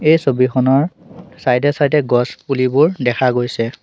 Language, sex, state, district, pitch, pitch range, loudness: Assamese, male, Assam, Sonitpur, 135 Hz, 125-150 Hz, -16 LUFS